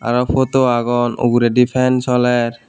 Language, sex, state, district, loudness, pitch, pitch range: Chakma, male, Tripura, Unakoti, -15 LUFS, 125 Hz, 120-125 Hz